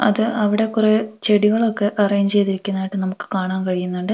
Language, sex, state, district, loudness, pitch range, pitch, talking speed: Malayalam, female, Kerala, Wayanad, -19 LUFS, 190-215 Hz, 205 Hz, 130 wpm